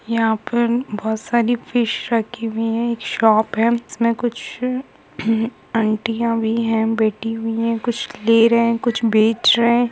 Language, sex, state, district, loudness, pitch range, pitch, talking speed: Hindi, female, Jharkhand, Jamtara, -19 LUFS, 225-235 Hz, 230 Hz, 170 wpm